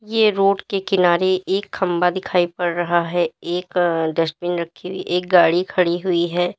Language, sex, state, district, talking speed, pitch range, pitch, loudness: Hindi, female, Uttar Pradesh, Lalitpur, 180 wpm, 175-185 Hz, 180 Hz, -19 LUFS